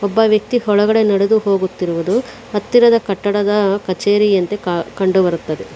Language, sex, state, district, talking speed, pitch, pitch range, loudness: Kannada, female, Karnataka, Bangalore, 105 wpm, 205 Hz, 190-215 Hz, -15 LUFS